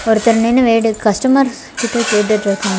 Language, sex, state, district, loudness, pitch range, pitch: Tamil, female, Tamil Nadu, Kanyakumari, -14 LUFS, 210-235 Hz, 225 Hz